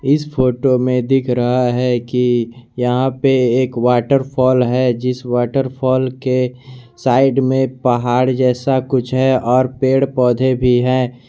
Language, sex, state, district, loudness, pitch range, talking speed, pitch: Hindi, male, Jharkhand, Garhwa, -16 LUFS, 125-130 Hz, 140 wpm, 125 Hz